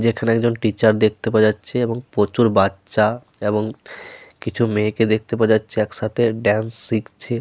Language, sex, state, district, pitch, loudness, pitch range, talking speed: Bengali, male, Jharkhand, Sahebganj, 110 Hz, -19 LUFS, 105-120 Hz, 145 wpm